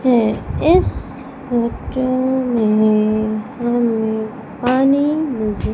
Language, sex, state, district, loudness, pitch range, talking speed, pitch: Hindi, female, Madhya Pradesh, Umaria, -17 LUFS, 220-260 Hz, 75 wpm, 240 Hz